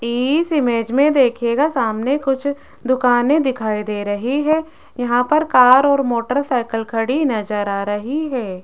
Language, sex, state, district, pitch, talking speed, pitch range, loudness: Hindi, female, Rajasthan, Jaipur, 250 Hz, 145 wpm, 230-280 Hz, -17 LUFS